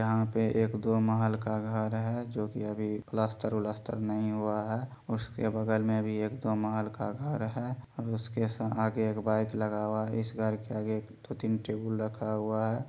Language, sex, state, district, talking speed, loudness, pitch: Maithili, male, Bihar, Supaul, 205 wpm, -32 LUFS, 110 Hz